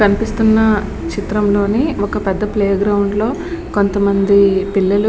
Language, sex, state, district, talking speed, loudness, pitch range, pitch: Telugu, female, Andhra Pradesh, Srikakulam, 130 wpm, -15 LUFS, 200-215 Hz, 205 Hz